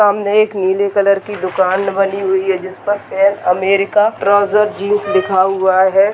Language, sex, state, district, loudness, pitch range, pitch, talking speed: Hindi, male, Bihar, Jahanabad, -14 LUFS, 190-205 Hz, 195 Hz, 175 wpm